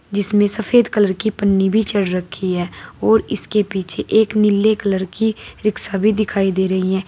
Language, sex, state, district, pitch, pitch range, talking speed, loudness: Hindi, female, Uttar Pradesh, Saharanpur, 205 Hz, 190-215 Hz, 185 wpm, -17 LUFS